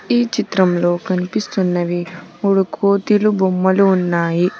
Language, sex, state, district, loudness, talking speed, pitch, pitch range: Telugu, female, Telangana, Hyderabad, -17 LUFS, 90 wpm, 190 Hz, 175-200 Hz